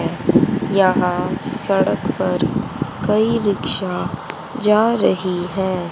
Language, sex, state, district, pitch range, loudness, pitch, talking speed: Hindi, female, Haryana, Rohtak, 180-215 Hz, -18 LUFS, 190 Hz, 80 wpm